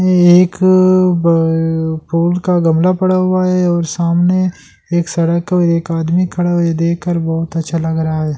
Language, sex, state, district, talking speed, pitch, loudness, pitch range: Hindi, male, Delhi, New Delhi, 205 wpm, 170 Hz, -14 LUFS, 165-180 Hz